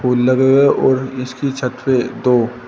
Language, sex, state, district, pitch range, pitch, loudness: Hindi, male, Uttar Pradesh, Shamli, 125-130 Hz, 130 Hz, -15 LUFS